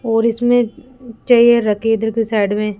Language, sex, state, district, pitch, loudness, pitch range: Hindi, female, Rajasthan, Jaipur, 225 Hz, -15 LUFS, 220-240 Hz